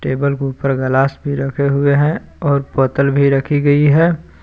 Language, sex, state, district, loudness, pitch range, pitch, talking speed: Hindi, male, Jharkhand, Palamu, -15 LUFS, 135-145 Hz, 140 Hz, 190 wpm